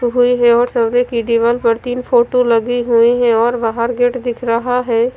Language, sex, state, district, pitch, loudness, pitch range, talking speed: Hindi, female, Punjab, Fazilka, 240 Hz, -14 LUFS, 235-245 Hz, 210 wpm